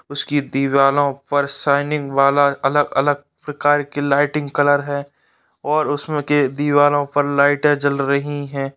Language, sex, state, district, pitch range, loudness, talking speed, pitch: Hindi, male, Bihar, Saharsa, 140-145 Hz, -18 LUFS, 135 wpm, 145 Hz